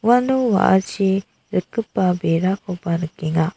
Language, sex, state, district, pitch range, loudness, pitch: Garo, female, Meghalaya, South Garo Hills, 170-200 Hz, -20 LUFS, 190 Hz